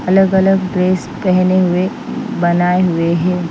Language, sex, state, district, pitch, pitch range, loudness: Hindi, female, Bihar, Patna, 185 Hz, 175-185 Hz, -14 LUFS